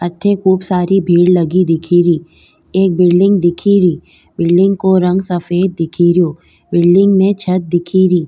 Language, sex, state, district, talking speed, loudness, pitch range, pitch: Rajasthani, female, Rajasthan, Nagaur, 140 wpm, -12 LUFS, 175-190 Hz, 180 Hz